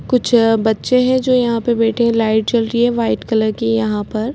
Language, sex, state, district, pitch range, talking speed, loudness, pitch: Hindi, female, Chhattisgarh, Kabirdham, 220-240 Hz, 235 wpm, -15 LUFS, 230 Hz